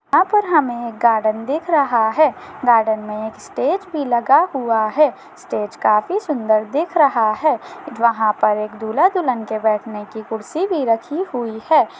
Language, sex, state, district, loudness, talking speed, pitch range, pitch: Hindi, female, Maharashtra, Chandrapur, -18 LUFS, 170 wpm, 220-305 Hz, 235 Hz